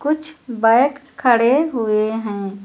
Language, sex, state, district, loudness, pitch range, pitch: Hindi, female, Uttar Pradesh, Lucknow, -17 LUFS, 220-280 Hz, 240 Hz